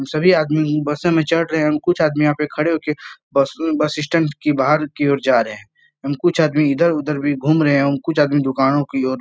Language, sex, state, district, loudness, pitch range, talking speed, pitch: Hindi, male, Uttar Pradesh, Etah, -17 LUFS, 145-160 Hz, 255 wpm, 150 Hz